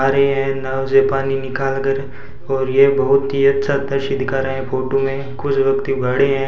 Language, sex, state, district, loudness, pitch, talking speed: Hindi, male, Rajasthan, Bikaner, -18 LUFS, 135 Hz, 205 wpm